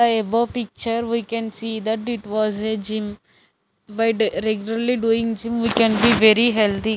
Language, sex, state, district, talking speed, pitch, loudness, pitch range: English, female, Chandigarh, Chandigarh, 170 wpm, 225 Hz, -20 LUFS, 215-230 Hz